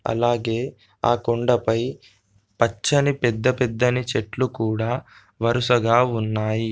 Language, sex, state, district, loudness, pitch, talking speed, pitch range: Telugu, male, Telangana, Komaram Bheem, -22 LUFS, 120 Hz, 80 wpm, 110-125 Hz